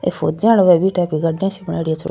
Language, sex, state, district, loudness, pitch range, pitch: Rajasthani, female, Rajasthan, Churu, -16 LUFS, 165-195 Hz, 180 Hz